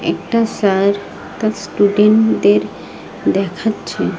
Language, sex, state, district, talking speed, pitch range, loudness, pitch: Bengali, female, Odisha, Malkangiri, 85 wpm, 190-220 Hz, -15 LUFS, 200 Hz